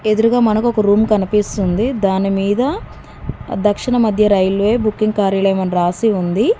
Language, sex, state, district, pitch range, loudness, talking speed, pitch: Telugu, female, Telangana, Mahabubabad, 195-220 Hz, -15 LUFS, 125 wpm, 210 Hz